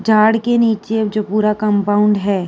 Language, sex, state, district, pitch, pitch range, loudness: Hindi, female, Uttar Pradesh, Jyotiba Phule Nagar, 215 Hz, 205-220 Hz, -15 LUFS